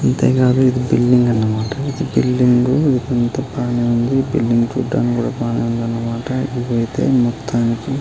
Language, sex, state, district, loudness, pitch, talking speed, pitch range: Telugu, male, Andhra Pradesh, Guntur, -17 LUFS, 120 Hz, 155 wpm, 115-130 Hz